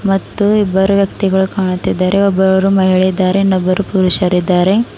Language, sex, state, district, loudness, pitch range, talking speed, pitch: Kannada, female, Karnataka, Bidar, -13 LUFS, 185-195 Hz, 110 wpm, 190 Hz